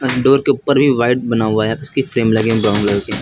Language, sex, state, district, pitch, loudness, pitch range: Hindi, male, Uttar Pradesh, Lucknow, 120 Hz, -15 LUFS, 110-135 Hz